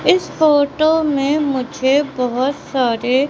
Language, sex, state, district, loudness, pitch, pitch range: Hindi, female, Madhya Pradesh, Katni, -17 LUFS, 280 Hz, 260-300 Hz